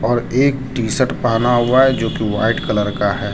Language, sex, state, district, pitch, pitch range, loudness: Hindi, male, Jharkhand, Deoghar, 115 Hz, 105-130 Hz, -16 LUFS